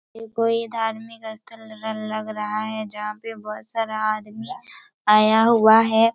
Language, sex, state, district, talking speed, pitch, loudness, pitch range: Hindi, female, Chhattisgarh, Raigarh, 155 wpm, 220 Hz, -21 LUFS, 215-225 Hz